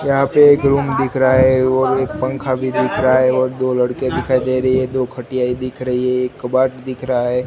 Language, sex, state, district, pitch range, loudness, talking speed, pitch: Hindi, male, Gujarat, Gandhinagar, 125-130 Hz, -16 LUFS, 255 wpm, 130 Hz